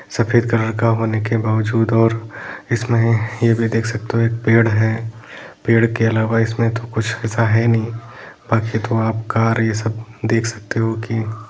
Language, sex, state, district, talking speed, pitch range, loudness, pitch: Hindi, male, Bihar, Jahanabad, 190 wpm, 110-115 Hz, -18 LUFS, 115 Hz